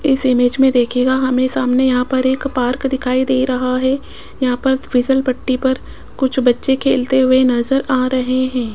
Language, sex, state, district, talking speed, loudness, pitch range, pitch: Hindi, female, Rajasthan, Jaipur, 180 wpm, -16 LUFS, 255-265 Hz, 260 Hz